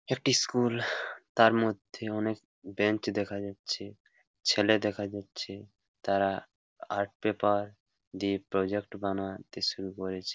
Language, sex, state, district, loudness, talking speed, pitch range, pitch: Bengali, male, West Bengal, Paschim Medinipur, -30 LUFS, 110 wpm, 100-110 Hz, 100 Hz